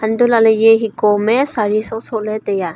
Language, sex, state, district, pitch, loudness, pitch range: Wancho, female, Arunachal Pradesh, Longding, 220 Hz, -14 LUFS, 210-225 Hz